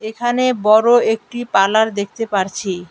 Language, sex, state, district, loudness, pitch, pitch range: Bengali, female, West Bengal, Alipurduar, -16 LUFS, 220 Hz, 200-240 Hz